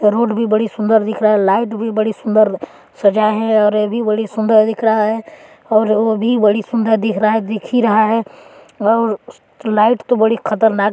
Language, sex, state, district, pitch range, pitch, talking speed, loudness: Hindi, female, Chhattisgarh, Balrampur, 215-225 Hz, 220 Hz, 200 wpm, -15 LUFS